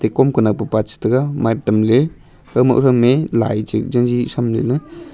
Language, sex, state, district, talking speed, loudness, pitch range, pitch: Wancho, male, Arunachal Pradesh, Longding, 140 wpm, -16 LUFS, 110-130 Hz, 120 Hz